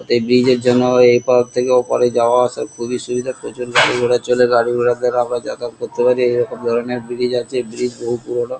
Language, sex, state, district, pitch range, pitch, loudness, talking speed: Bengali, male, West Bengal, Kolkata, 120-125 Hz, 125 Hz, -16 LUFS, 210 wpm